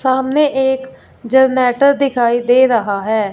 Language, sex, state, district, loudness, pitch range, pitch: Hindi, female, Punjab, Fazilka, -14 LUFS, 235-265 Hz, 260 Hz